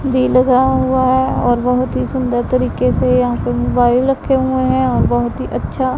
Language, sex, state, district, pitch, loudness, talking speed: Hindi, female, Punjab, Pathankot, 245 Hz, -15 LUFS, 200 wpm